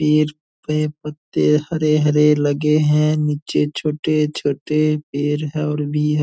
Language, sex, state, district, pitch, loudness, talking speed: Angika, male, Bihar, Purnia, 150 Hz, -18 LUFS, 125 wpm